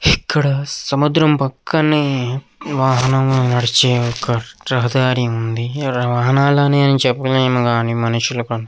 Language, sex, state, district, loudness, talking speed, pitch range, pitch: Telugu, male, Andhra Pradesh, Krishna, -16 LUFS, 110 wpm, 120-140 Hz, 130 Hz